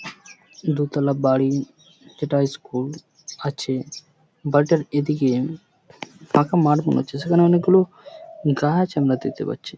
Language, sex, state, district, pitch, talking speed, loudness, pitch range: Bengali, male, West Bengal, Purulia, 150 Hz, 110 wpm, -21 LUFS, 140-165 Hz